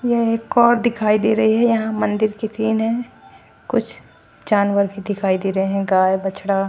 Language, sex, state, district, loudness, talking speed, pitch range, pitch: Hindi, female, Haryana, Charkhi Dadri, -18 LUFS, 190 wpm, 195-225 Hz, 215 Hz